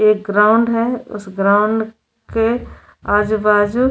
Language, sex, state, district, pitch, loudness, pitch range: Hindi, female, Goa, North and South Goa, 215 Hz, -16 LUFS, 210-230 Hz